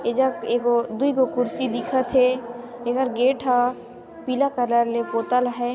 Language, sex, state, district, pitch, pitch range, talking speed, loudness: Chhattisgarhi, female, Chhattisgarh, Sarguja, 245 Hz, 240-260 Hz, 165 wpm, -22 LUFS